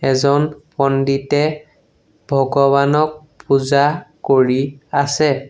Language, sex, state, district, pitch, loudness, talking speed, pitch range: Assamese, male, Assam, Sonitpur, 140 Hz, -16 LUFS, 65 wpm, 135-150 Hz